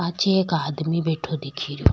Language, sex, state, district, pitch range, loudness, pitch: Rajasthani, female, Rajasthan, Nagaur, 145-170 Hz, -24 LUFS, 160 Hz